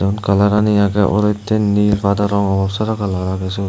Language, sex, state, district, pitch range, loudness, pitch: Chakma, male, Tripura, Dhalai, 100-105 Hz, -16 LUFS, 100 Hz